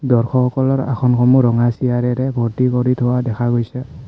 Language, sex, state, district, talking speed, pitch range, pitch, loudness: Assamese, male, Assam, Kamrup Metropolitan, 175 wpm, 120-130 Hz, 125 Hz, -16 LUFS